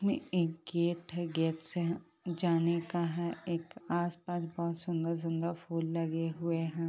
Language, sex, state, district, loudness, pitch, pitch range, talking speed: Hindi, female, Jharkhand, Sahebganj, -35 LUFS, 170 Hz, 165-175 Hz, 150 wpm